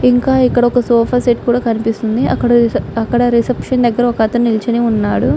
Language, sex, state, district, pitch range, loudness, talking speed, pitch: Telugu, female, Andhra Pradesh, Guntur, 230-245 Hz, -14 LUFS, 145 wpm, 240 Hz